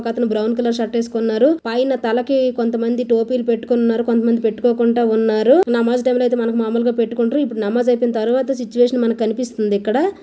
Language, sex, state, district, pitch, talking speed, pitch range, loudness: Telugu, female, Andhra Pradesh, Visakhapatnam, 235 Hz, 165 wpm, 230-245 Hz, -17 LUFS